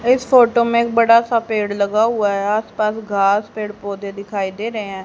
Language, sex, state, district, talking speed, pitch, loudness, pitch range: Hindi, female, Haryana, Rohtak, 215 wpm, 215 Hz, -17 LUFS, 200-230 Hz